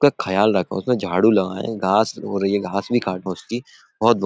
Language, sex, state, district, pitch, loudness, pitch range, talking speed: Hindi, male, Uttar Pradesh, Budaun, 100 Hz, -20 LUFS, 95-120 Hz, 195 wpm